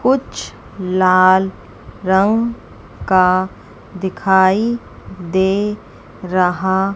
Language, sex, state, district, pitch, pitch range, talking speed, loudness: Hindi, female, Chandigarh, Chandigarh, 190 Hz, 185-205 Hz, 70 wpm, -16 LUFS